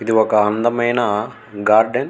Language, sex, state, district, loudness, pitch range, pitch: Telugu, male, Andhra Pradesh, Guntur, -17 LUFS, 105-120 Hz, 110 Hz